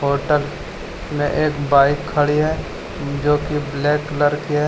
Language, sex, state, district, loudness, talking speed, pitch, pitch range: Hindi, male, Jharkhand, Deoghar, -19 LUFS, 155 wpm, 145 Hz, 140-150 Hz